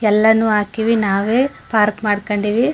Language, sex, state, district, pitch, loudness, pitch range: Kannada, female, Karnataka, Mysore, 215 Hz, -16 LUFS, 210-225 Hz